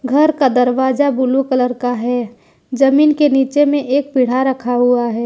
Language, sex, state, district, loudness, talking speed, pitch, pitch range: Hindi, female, Jharkhand, Ranchi, -14 LUFS, 185 wpm, 260 Hz, 245-280 Hz